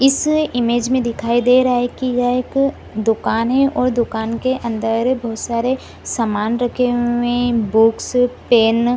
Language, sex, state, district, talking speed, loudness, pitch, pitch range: Hindi, female, Bihar, Supaul, 165 wpm, -17 LUFS, 245 Hz, 230-255 Hz